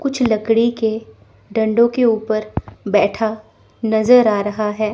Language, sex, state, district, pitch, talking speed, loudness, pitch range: Hindi, female, Chandigarh, Chandigarh, 220 Hz, 135 wpm, -17 LUFS, 215-230 Hz